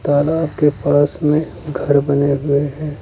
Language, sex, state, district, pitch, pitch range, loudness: Hindi, male, Uttar Pradesh, Saharanpur, 145 Hz, 140-150 Hz, -17 LUFS